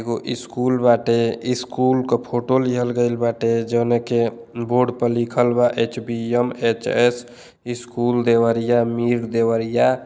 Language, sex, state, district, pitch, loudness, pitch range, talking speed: Bhojpuri, male, Uttar Pradesh, Deoria, 120 Hz, -20 LUFS, 115-120 Hz, 125 wpm